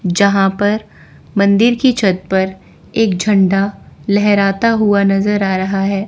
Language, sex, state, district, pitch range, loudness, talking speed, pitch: Hindi, female, Chandigarh, Chandigarh, 195-210 Hz, -14 LUFS, 140 wpm, 200 Hz